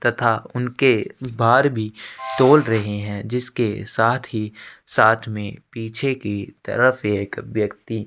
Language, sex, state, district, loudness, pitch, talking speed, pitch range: Hindi, male, Chhattisgarh, Sukma, -20 LUFS, 115 Hz, 125 wpm, 105-125 Hz